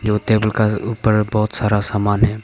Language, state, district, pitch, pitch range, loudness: Hindi, Arunachal Pradesh, Papum Pare, 105 Hz, 105-110 Hz, -17 LUFS